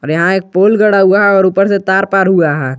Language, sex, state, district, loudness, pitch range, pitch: Hindi, male, Jharkhand, Garhwa, -10 LUFS, 180-195 Hz, 190 Hz